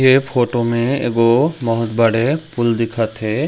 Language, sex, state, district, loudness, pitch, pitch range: Chhattisgarhi, male, Chhattisgarh, Raigarh, -17 LUFS, 120 Hz, 115-130 Hz